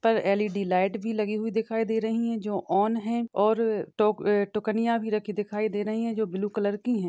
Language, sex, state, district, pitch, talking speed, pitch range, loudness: Hindi, female, Maharashtra, Sindhudurg, 215 Hz, 230 wpm, 205-225 Hz, -27 LUFS